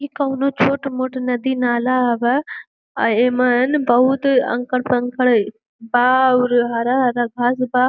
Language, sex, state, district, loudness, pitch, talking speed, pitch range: Bhojpuri, female, Uttar Pradesh, Gorakhpur, -17 LUFS, 250 Hz, 130 wpm, 245-260 Hz